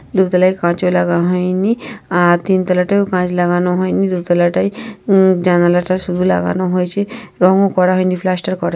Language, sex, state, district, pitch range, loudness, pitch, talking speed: Bengali, female, West Bengal, North 24 Parganas, 180-190 Hz, -15 LUFS, 185 Hz, 170 wpm